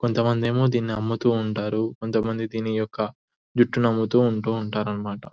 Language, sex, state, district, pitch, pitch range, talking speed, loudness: Telugu, female, Telangana, Nalgonda, 115 Hz, 110-120 Hz, 145 wpm, -24 LUFS